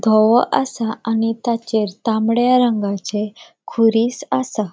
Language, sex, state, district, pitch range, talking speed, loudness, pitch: Konkani, female, Goa, North and South Goa, 215-240 Hz, 100 wpm, -18 LUFS, 225 Hz